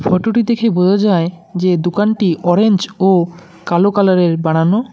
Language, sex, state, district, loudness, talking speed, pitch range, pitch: Bengali, male, West Bengal, Cooch Behar, -14 LUFS, 135 wpm, 175-205 Hz, 185 Hz